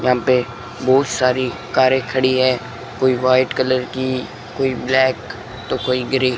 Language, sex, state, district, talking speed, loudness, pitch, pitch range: Hindi, male, Rajasthan, Bikaner, 160 wpm, -18 LUFS, 130 Hz, 125-130 Hz